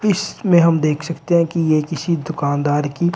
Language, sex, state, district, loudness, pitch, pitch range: Hindi, male, Uttar Pradesh, Shamli, -18 LUFS, 165 Hz, 150-170 Hz